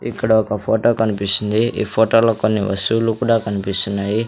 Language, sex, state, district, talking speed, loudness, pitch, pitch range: Telugu, male, Andhra Pradesh, Sri Satya Sai, 140 wpm, -17 LUFS, 110 Hz, 100-115 Hz